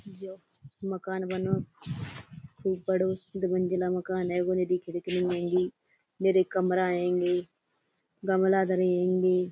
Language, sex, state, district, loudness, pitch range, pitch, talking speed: Hindi, female, Uttar Pradesh, Budaun, -28 LUFS, 180-185 Hz, 185 Hz, 90 wpm